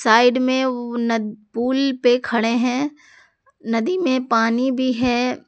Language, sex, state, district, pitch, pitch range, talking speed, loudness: Hindi, female, Jharkhand, Garhwa, 245 Hz, 230-260 Hz, 140 wpm, -19 LUFS